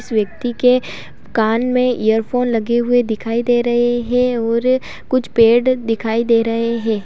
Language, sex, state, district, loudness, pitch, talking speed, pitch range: Hindi, female, Uttar Pradesh, Lalitpur, -16 LUFS, 235 Hz, 160 wpm, 225-245 Hz